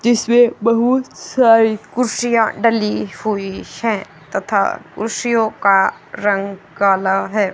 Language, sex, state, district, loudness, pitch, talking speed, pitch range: Hindi, male, Haryana, Charkhi Dadri, -17 LUFS, 220 Hz, 95 wpm, 195-235 Hz